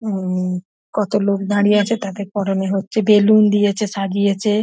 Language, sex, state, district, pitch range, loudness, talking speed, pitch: Bengali, female, West Bengal, North 24 Parganas, 195-210 Hz, -17 LUFS, 155 wpm, 200 Hz